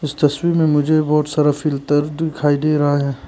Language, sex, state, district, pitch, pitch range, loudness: Hindi, male, Arunachal Pradesh, Papum Pare, 150 Hz, 145-155 Hz, -17 LUFS